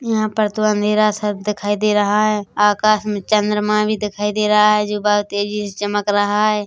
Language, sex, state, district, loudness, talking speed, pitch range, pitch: Hindi, female, Chhattisgarh, Bilaspur, -17 LUFS, 215 wpm, 205-215 Hz, 210 Hz